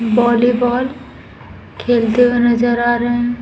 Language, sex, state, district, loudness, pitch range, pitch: Hindi, female, Uttar Pradesh, Muzaffarnagar, -15 LUFS, 240-245 Hz, 240 Hz